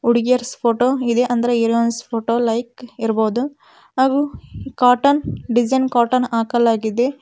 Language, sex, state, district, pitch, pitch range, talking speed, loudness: Kannada, female, Karnataka, Koppal, 240 Hz, 235-255 Hz, 100 wpm, -18 LUFS